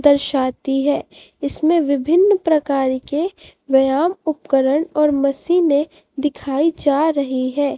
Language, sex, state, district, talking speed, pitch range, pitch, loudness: Hindi, female, Chhattisgarh, Raipur, 110 wpm, 275-315 Hz, 290 Hz, -18 LUFS